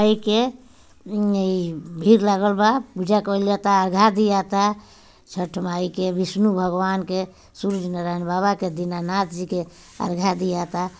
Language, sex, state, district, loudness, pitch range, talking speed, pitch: Bhojpuri, female, Bihar, Gopalganj, -21 LUFS, 180-205 Hz, 145 wpm, 190 Hz